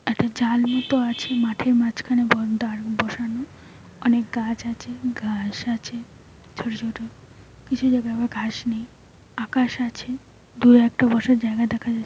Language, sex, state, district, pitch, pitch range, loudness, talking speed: Bengali, female, West Bengal, Jhargram, 235 Hz, 230-245 Hz, -22 LUFS, 140 wpm